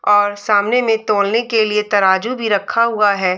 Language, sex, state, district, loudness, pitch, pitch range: Hindi, female, Uttar Pradesh, Budaun, -15 LUFS, 210 Hz, 205-225 Hz